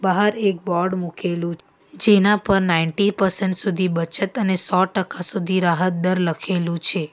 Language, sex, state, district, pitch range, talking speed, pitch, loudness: Gujarati, female, Gujarat, Valsad, 175-195 Hz, 150 wpm, 185 Hz, -19 LUFS